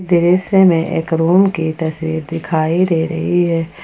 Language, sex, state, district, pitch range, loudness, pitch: Hindi, female, Jharkhand, Ranchi, 160-175 Hz, -15 LUFS, 165 Hz